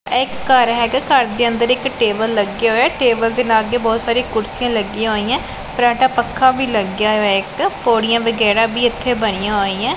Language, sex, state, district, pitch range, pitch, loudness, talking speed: Punjabi, female, Punjab, Pathankot, 215-245 Hz, 230 Hz, -16 LUFS, 195 wpm